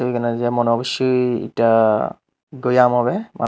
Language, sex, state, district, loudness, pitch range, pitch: Bengali, male, Tripura, Unakoti, -18 LUFS, 115-125 Hz, 120 Hz